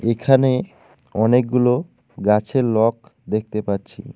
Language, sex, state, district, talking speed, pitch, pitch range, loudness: Bengali, male, West Bengal, Alipurduar, 85 wpm, 115 Hz, 110-130 Hz, -19 LUFS